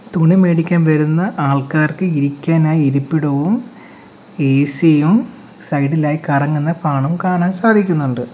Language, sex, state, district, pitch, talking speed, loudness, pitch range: Malayalam, male, Kerala, Kollam, 160 Hz, 100 wpm, -15 LUFS, 145-180 Hz